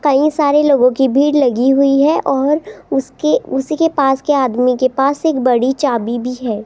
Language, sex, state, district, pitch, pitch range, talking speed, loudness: Hindi, female, Rajasthan, Jaipur, 270 Hz, 255-295 Hz, 205 wpm, -14 LUFS